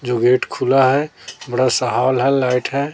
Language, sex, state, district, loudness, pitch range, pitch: Hindi, female, Chhattisgarh, Raipur, -17 LUFS, 125-135 Hz, 130 Hz